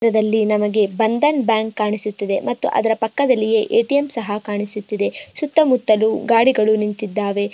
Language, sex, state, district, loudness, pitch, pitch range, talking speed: Kannada, female, Karnataka, Bijapur, -18 LUFS, 220 Hz, 210-235 Hz, 125 wpm